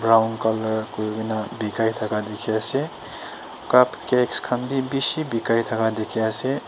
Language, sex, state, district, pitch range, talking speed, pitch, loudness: Nagamese, female, Nagaland, Dimapur, 110-125 Hz, 145 wpm, 110 Hz, -21 LUFS